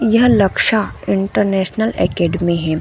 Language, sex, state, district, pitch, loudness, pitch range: Hindi, female, Chhattisgarh, Bilaspur, 195 Hz, -16 LUFS, 175-220 Hz